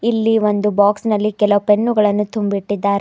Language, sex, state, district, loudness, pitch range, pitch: Kannada, female, Karnataka, Bidar, -16 LUFS, 205-215 Hz, 210 Hz